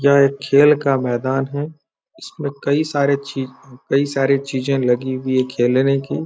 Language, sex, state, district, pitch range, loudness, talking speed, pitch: Hindi, male, Bihar, Araria, 130-140 Hz, -18 LUFS, 170 wpm, 135 Hz